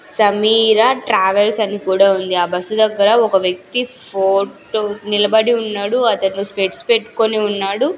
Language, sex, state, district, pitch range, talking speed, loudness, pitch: Telugu, female, Andhra Pradesh, Sri Satya Sai, 195-225 Hz, 130 wpm, -15 LUFS, 210 Hz